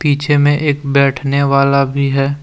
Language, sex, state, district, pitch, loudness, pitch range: Hindi, male, Jharkhand, Deoghar, 140 Hz, -13 LUFS, 140-145 Hz